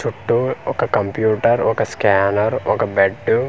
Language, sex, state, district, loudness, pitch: Telugu, male, Andhra Pradesh, Manyam, -18 LUFS, 110 Hz